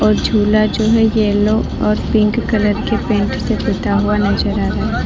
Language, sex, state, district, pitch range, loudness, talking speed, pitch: Hindi, female, Uttar Pradesh, Lalitpur, 205-220 Hz, -15 LUFS, 200 wpm, 210 Hz